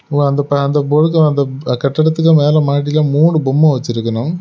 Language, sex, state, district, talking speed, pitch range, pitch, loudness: Tamil, male, Tamil Nadu, Kanyakumari, 80 wpm, 140-155 Hz, 145 Hz, -13 LUFS